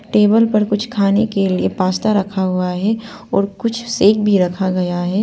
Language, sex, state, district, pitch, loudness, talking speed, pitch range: Hindi, female, Arunachal Pradesh, Papum Pare, 200 Hz, -16 LUFS, 195 wpm, 185-215 Hz